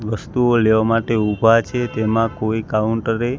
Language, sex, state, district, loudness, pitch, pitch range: Gujarati, male, Gujarat, Gandhinagar, -18 LUFS, 115 Hz, 110-115 Hz